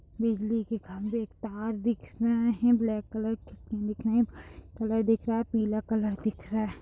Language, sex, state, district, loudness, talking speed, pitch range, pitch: Hindi, female, Uttar Pradesh, Deoria, -30 LUFS, 200 wpm, 215-230 Hz, 225 Hz